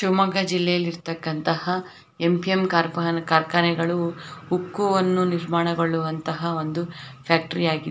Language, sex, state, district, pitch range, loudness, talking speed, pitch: Kannada, female, Karnataka, Shimoga, 165-180 Hz, -23 LUFS, 90 wpm, 170 Hz